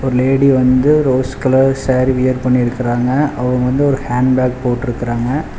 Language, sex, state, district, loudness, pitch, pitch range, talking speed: Tamil, male, Tamil Nadu, Chennai, -14 LUFS, 130 Hz, 125-135 Hz, 150 wpm